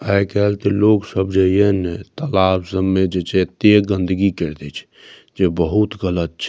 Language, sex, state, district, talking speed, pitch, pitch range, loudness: Maithili, male, Bihar, Saharsa, 205 wpm, 95 Hz, 90-100 Hz, -17 LUFS